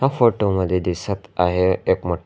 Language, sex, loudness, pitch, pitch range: Marathi, male, -20 LUFS, 95 Hz, 90-100 Hz